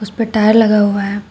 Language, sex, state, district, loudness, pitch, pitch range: Hindi, female, Uttar Pradesh, Shamli, -13 LUFS, 210 Hz, 205-220 Hz